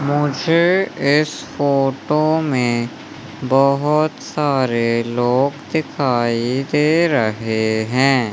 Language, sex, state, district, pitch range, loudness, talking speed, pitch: Hindi, male, Madhya Pradesh, Umaria, 120-150 Hz, -17 LUFS, 80 wpm, 135 Hz